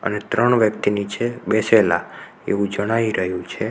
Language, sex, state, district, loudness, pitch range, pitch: Gujarati, male, Gujarat, Navsari, -20 LUFS, 100-115 Hz, 105 Hz